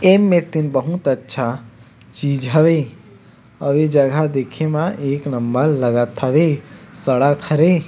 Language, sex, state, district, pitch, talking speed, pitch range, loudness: Chhattisgarhi, male, Chhattisgarh, Sukma, 145 Hz, 135 wpm, 130-160 Hz, -17 LUFS